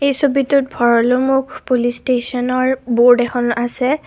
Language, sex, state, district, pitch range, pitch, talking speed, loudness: Assamese, female, Assam, Kamrup Metropolitan, 240-270 Hz, 255 Hz, 120 wpm, -15 LUFS